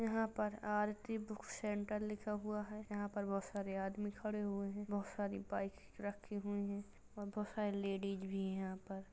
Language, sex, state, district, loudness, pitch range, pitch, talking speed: Hindi, female, Uttar Pradesh, Jalaun, -43 LUFS, 200-210 Hz, 205 Hz, 195 wpm